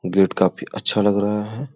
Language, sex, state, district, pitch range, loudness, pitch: Hindi, male, Uttar Pradesh, Gorakhpur, 100-105 Hz, -20 LUFS, 105 Hz